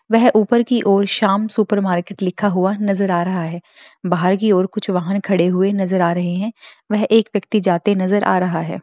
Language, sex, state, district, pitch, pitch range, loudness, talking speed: Hindi, female, Bihar, Bhagalpur, 195 Hz, 180-210 Hz, -17 LUFS, 215 wpm